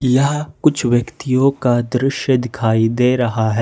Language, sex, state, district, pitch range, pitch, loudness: Hindi, male, Jharkhand, Ranchi, 120-135 Hz, 125 Hz, -17 LUFS